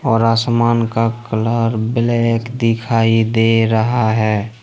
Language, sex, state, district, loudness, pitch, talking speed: Hindi, male, Jharkhand, Ranchi, -16 LUFS, 115 Hz, 115 wpm